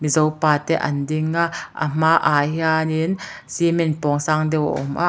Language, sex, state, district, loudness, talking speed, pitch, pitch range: Mizo, female, Mizoram, Aizawl, -20 LUFS, 175 wpm, 155 Hz, 150-165 Hz